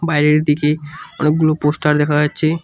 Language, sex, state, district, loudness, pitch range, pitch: Bengali, male, West Bengal, Cooch Behar, -16 LUFS, 150-155 Hz, 150 Hz